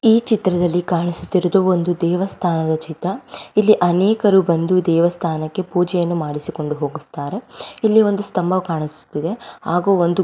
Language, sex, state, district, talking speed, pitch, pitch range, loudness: Kannada, female, Karnataka, Raichur, 110 wpm, 175 Hz, 170-195 Hz, -18 LUFS